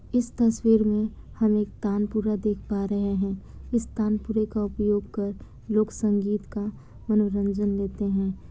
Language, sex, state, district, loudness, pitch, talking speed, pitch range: Hindi, female, Bihar, Kishanganj, -26 LUFS, 210 Hz, 150 wpm, 200-215 Hz